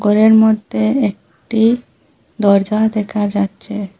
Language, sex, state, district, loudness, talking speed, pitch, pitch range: Bengali, female, Assam, Hailakandi, -15 LUFS, 90 wpm, 215 Hz, 205-220 Hz